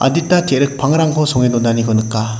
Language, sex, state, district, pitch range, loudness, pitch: Garo, male, Meghalaya, West Garo Hills, 115-155 Hz, -14 LUFS, 135 Hz